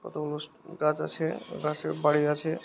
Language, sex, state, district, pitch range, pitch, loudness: Bengali, male, West Bengal, Jhargram, 150-160 Hz, 150 Hz, -29 LUFS